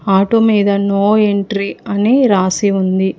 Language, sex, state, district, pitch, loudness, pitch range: Telugu, female, Telangana, Hyderabad, 200 Hz, -13 LUFS, 195-210 Hz